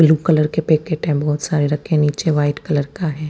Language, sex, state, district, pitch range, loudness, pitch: Hindi, female, Punjab, Fazilka, 150-160 Hz, -18 LUFS, 150 Hz